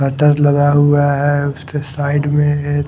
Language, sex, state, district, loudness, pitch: Hindi, male, Haryana, Rohtak, -14 LUFS, 145 Hz